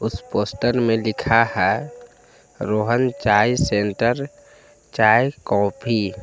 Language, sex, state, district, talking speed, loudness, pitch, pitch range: Hindi, male, Jharkhand, Palamu, 95 wpm, -20 LUFS, 115 Hz, 105-125 Hz